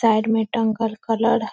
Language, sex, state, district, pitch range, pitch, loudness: Magahi, female, Bihar, Lakhisarai, 220-230 Hz, 225 Hz, -21 LUFS